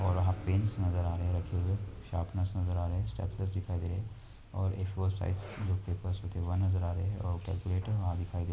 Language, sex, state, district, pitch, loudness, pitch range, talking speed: Hindi, male, Uttar Pradesh, Muzaffarnagar, 95 Hz, -34 LUFS, 90-95 Hz, 260 wpm